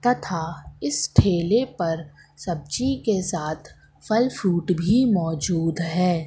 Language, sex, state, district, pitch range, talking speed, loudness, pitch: Hindi, female, Madhya Pradesh, Katni, 165-215 Hz, 115 wpm, -23 LUFS, 175 Hz